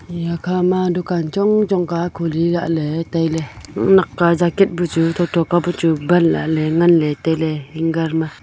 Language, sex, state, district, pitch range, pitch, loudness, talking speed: Wancho, female, Arunachal Pradesh, Longding, 160-175 Hz, 170 Hz, -17 LUFS, 170 wpm